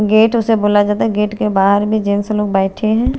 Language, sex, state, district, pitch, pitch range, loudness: Hindi, female, Chandigarh, Chandigarh, 210 Hz, 205-215 Hz, -14 LUFS